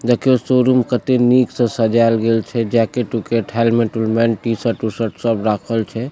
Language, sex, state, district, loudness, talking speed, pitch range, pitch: Maithili, male, Bihar, Supaul, -17 LUFS, 165 wpm, 115-120 Hz, 115 Hz